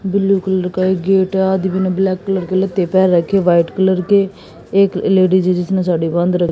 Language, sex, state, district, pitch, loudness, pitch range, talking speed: Hindi, female, Haryana, Jhajjar, 190 Hz, -15 LUFS, 180-190 Hz, 230 wpm